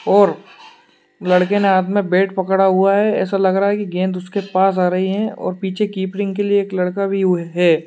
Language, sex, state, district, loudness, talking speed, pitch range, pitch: Hindi, male, Uttar Pradesh, Hamirpur, -17 LUFS, 220 wpm, 185-200 Hz, 195 Hz